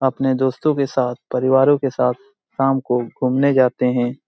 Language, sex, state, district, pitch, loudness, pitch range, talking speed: Hindi, male, Jharkhand, Jamtara, 130 Hz, -18 LUFS, 125-135 Hz, 170 wpm